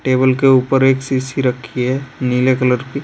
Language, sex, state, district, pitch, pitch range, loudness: Hindi, male, Uttar Pradesh, Saharanpur, 130 Hz, 125-135 Hz, -15 LUFS